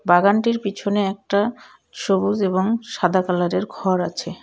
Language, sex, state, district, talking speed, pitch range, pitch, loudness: Bengali, female, West Bengal, Cooch Behar, 120 wpm, 185-205 Hz, 195 Hz, -21 LUFS